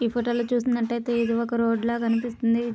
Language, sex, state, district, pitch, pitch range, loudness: Telugu, female, Andhra Pradesh, Krishna, 235 Hz, 230-240 Hz, -25 LUFS